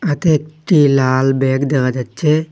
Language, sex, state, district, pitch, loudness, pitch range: Bengali, male, Assam, Hailakandi, 140 Hz, -15 LUFS, 135-155 Hz